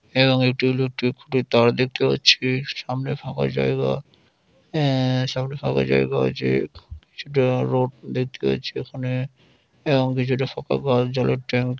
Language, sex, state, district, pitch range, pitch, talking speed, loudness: Bengali, male, West Bengal, Dakshin Dinajpur, 85-130 Hz, 125 Hz, 125 wpm, -22 LUFS